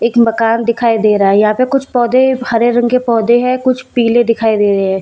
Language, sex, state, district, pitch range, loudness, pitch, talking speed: Hindi, female, Bihar, Katihar, 225-245 Hz, -12 LUFS, 235 Hz, 250 wpm